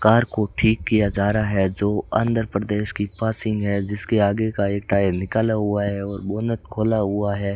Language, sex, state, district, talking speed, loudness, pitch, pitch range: Hindi, male, Rajasthan, Bikaner, 200 wpm, -22 LUFS, 105 Hz, 100-110 Hz